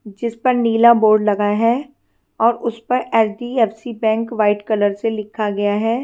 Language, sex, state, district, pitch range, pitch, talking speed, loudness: Hindi, female, Punjab, Fazilka, 215-235 Hz, 225 Hz, 180 wpm, -17 LUFS